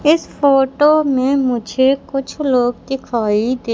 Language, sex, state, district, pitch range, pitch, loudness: Hindi, female, Madhya Pradesh, Katni, 245-280 Hz, 270 Hz, -16 LUFS